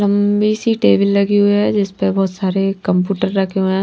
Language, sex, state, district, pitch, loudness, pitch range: Hindi, female, Maharashtra, Washim, 195 Hz, -15 LUFS, 190-205 Hz